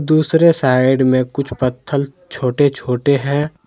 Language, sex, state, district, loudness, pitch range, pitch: Hindi, male, Jharkhand, Deoghar, -16 LUFS, 130-150 Hz, 140 Hz